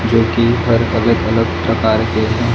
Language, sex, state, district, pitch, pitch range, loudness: Hindi, male, Maharashtra, Gondia, 115 Hz, 110-115 Hz, -15 LUFS